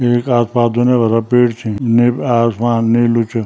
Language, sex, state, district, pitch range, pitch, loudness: Garhwali, male, Uttarakhand, Tehri Garhwal, 115-120 Hz, 120 Hz, -14 LUFS